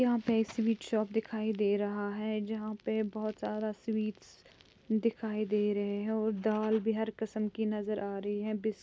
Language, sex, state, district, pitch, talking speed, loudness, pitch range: Hindi, female, Andhra Pradesh, Chittoor, 215 Hz, 195 wpm, -33 LUFS, 210-220 Hz